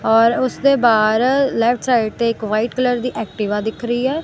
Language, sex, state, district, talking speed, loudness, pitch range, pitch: Punjabi, female, Punjab, Kapurthala, 200 wpm, -17 LUFS, 220-255 Hz, 240 Hz